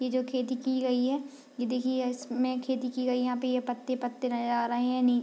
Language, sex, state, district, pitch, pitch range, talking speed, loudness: Hindi, female, Bihar, Madhepura, 255 Hz, 250-255 Hz, 310 wpm, -30 LUFS